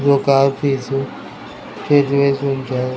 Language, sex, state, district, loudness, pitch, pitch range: Telugu, male, Andhra Pradesh, Krishna, -17 LUFS, 140 Hz, 135-140 Hz